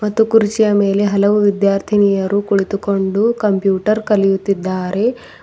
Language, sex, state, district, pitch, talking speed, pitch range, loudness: Kannada, female, Karnataka, Bidar, 200 Hz, 90 wpm, 195-210 Hz, -15 LUFS